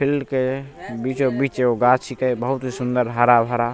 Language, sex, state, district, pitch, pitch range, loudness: Maithili, male, Bihar, Begusarai, 125 Hz, 120-135 Hz, -20 LUFS